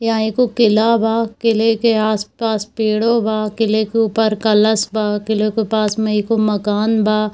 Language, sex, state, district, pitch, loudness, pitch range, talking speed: Hindi, female, Bihar, Darbhanga, 220 Hz, -16 LUFS, 215-225 Hz, 170 wpm